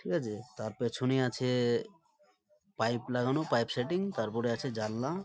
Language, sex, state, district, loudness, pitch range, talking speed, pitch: Bengali, male, West Bengal, Malda, -33 LUFS, 115-160 Hz, 150 wpm, 125 Hz